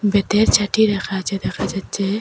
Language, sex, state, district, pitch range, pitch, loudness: Bengali, female, Assam, Hailakandi, 195-205 Hz, 200 Hz, -19 LUFS